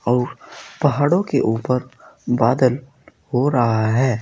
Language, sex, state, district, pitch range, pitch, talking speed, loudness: Hindi, male, Uttar Pradesh, Saharanpur, 120-140 Hz, 125 Hz, 115 wpm, -19 LUFS